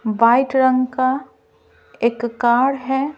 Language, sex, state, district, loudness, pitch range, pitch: Hindi, female, Bihar, Patna, -18 LUFS, 235-265 Hz, 255 Hz